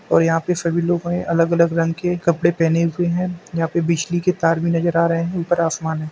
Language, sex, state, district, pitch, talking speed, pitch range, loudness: Hindi, male, Uttar Pradesh, Jalaun, 170 Hz, 265 wpm, 165-175 Hz, -19 LUFS